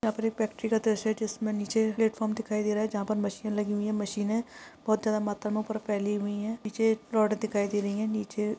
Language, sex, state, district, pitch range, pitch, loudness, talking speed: Hindi, female, Maharashtra, Pune, 210-220 Hz, 215 Hz, -30 LUFS, 265 wpm